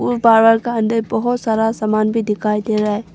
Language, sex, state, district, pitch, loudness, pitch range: Hindi, female, Arunachal Pradesh, Longding, 225 Hz, -16 LUFS, 215-225 Hz